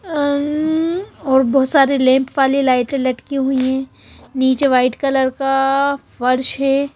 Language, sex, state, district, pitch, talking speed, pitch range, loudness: Hindi, female, Bihar, Katihar, 270 Hz, 140 wpm, 260-280 Hz, -16 LUFS